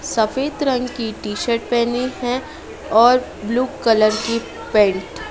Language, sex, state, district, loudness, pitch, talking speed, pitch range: Hindi, female, Madhya Pradesh, Dhar, -19 LUFS, 235 Hz, 145 wpm, 220-250 Hz